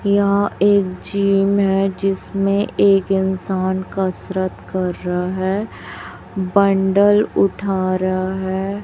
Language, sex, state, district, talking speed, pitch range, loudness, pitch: Hindi, female, Chhattisgarh, Raipur, 100 wpm, 185-200 Hz, -18 LUFS, 190 Hz